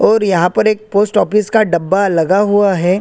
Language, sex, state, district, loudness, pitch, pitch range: Hindi, male, Chhattisgarh, Korba, -13 LUFS, 200 Hz, 185-210 Hz